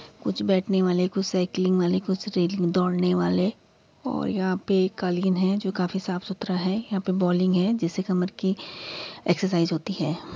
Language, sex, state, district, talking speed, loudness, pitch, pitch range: Hindi, female, Uttar Pradesh, Budaun, 170 wpm, -25 LUFS, 185 Hz, 180-190 Hz